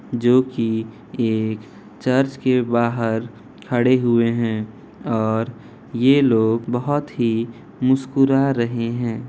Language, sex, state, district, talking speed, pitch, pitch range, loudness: Hindi, male, Bihar, Kishanganj, 110 wpm, 120 Hz, 115-130 Hz, -20 LUFS